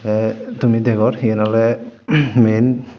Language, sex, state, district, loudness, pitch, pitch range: Chakma, male, Tripura, Dhalai, -16 LUFS, 115 Hz, 110-125 Hz